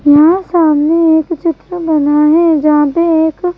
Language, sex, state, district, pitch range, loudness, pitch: Hindi, female, Madhya Pradesh, Bhopal, 300-335 Hz, -11 LUFS, 320 Hz